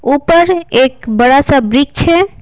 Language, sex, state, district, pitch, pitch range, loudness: Hindi, female, Bihar, Patna, 275 Hz, 255-335 Hz, -10 LUFS